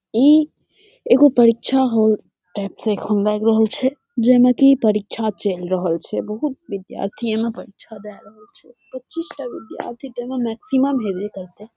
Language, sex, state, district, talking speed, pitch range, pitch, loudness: Maithili, female, Bihar, Saharsa, 160 wpm, 210-265 Hz, 230 Hz, -19 LUFS